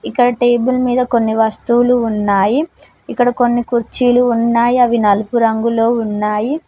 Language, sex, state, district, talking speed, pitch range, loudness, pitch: Telugu, female, Telangana, Mahabubabad, 125 wpm, 225-245 Hz, -14 LUFS, 240 Hz